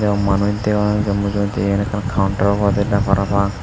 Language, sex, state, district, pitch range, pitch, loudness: Chakma, male, Tripura, Unakoti, 100-105 Hz, 100 Hz, -18 LUFS